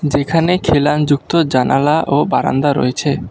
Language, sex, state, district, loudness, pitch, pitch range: Bengali, male, West Bengal, Alipurduar, -14 LUFS, 145 Hz, 140-155 Hz